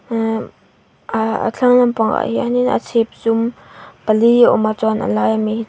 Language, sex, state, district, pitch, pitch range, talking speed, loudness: Mizo, female, Mizoram, Aizawl, 225 Hz, 220-240 Hz, 200 wpm, -16 LUFS